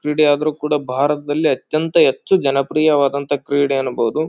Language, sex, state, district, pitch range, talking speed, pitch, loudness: Kannada, male, Karnataka, Bijapur, 140-155 Hz, 125 wpm, 145 Hz, -17 LUFS